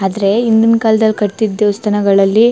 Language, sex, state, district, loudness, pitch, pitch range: Kannada, female, Karnataka, Chamarajanagar, -12 LUFS, 210 Hz, 200-220 Hz